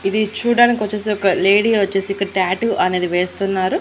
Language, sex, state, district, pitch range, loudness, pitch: Telugu, female, Andhra Pradesh, Annamaya, 185-215 Hz, -17 LUFS, 195 Hz